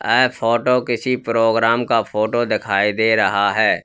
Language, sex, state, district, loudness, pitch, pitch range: Hindi, male, Uttar Pradesh, Lalitpur, -17 LUFS, 115 Hz, 110-120 Hz